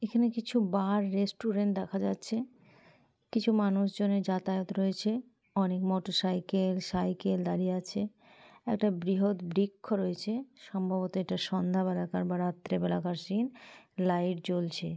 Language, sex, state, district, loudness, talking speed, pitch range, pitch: Bengali, female, West Bengal, Jhargram, -32 LUFS, 120 wpm, 185-210 Hz, 190 Hz